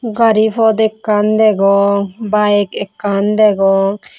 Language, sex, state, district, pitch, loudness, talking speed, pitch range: Chakma, female, Tripura, West Tripura, 210 Hz, -13 LUFS, 100 wpm, 200-220 Hz